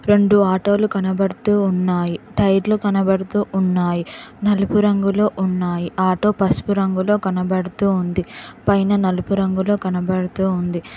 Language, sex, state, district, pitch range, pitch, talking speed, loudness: Telugu, female, Telangana, Mahabubabad, 185-205 Hz, 195 Hz, 120 wpm, -18 LUFS